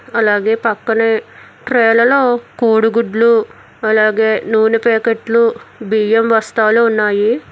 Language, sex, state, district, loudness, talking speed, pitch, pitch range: Telugu, female, Telangana, Hyderabad, -13 LUFS, 80 wpm, 225 Hz, 220-230 Hz